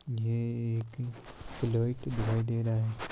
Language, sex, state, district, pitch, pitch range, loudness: Hindi, male, Rajasthan, Churu, 115 Hz, 115-120 Hz, -32 LUFS